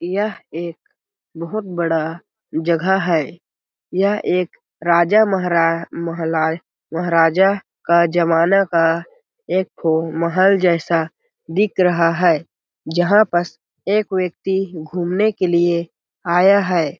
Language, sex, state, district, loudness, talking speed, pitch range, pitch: Hindi, male, Chhattisgarh, Balrampur, -18 LUFS, 100 wpm, 165-195 Hz, 175 Hz